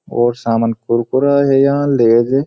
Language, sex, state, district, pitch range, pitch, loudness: Garhwali, male, Uttarakhand, Uttarkashi, 115-140 Hz, 120 Hz, -14 LUFS